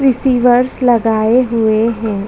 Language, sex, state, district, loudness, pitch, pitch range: Hindi, female, Chhattisgarh, Bastar, -13 LUFS, 235 Hz, 220-250 Hz